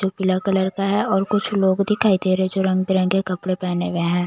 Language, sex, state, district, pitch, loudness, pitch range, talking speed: Hindi, female, Bihar, Patna, 190 Hz, -20 LUFS, 185-195 Hz, 265 wpm